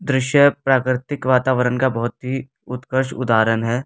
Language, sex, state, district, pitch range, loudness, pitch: Hindi, male, Delhi, New Delhi, 125-130 Hz, -19 LUFS, 130 Hz